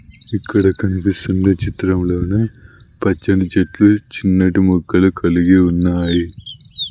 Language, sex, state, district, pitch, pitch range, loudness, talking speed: Telugu, male, Andhra Pradesh, Sri Satya Sai, 95 Hz, 90-105 Hz, -16 LUFS, 80 wpm